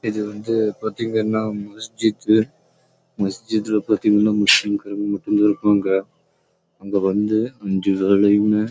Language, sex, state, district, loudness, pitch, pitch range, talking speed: Tamil, male, Karnataka, Chamarajanagar, -19 LUFS, 105 Hz, 100-110 Hz, 35 wpm